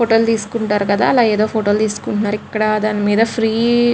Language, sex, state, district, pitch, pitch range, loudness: Telugu, female, Andhra Pradesh, Krishna, 215 Hz, 210-225 Hz, -16 LUFS